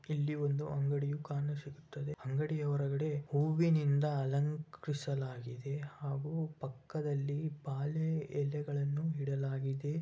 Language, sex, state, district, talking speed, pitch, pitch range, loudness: Kannada, male, Karnataka, Bellary, 65 wpm, 145 Hz, 140-150 Hz, -36 LUFS